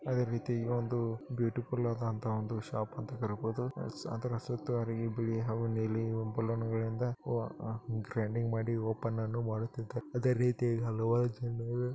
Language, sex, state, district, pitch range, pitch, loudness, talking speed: Kannada, male, Karnataka, Bellary, 110-120 Hz, 115 Hz, -35 LUFS, 150 wpm